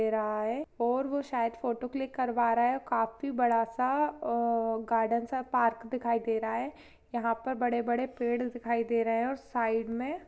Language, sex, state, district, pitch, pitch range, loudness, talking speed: Hindi, female, Chhattisgarh, Sarguja, 235 Hz, 230-255 Hz, -31 LUFS, 195 wpm